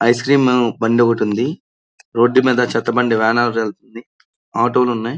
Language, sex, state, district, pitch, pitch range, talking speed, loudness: Telugu, male, Andhra Pradesh, Srikakulam, 120 Hz, 115-125 Hz, 160 wpm, -16 LUFS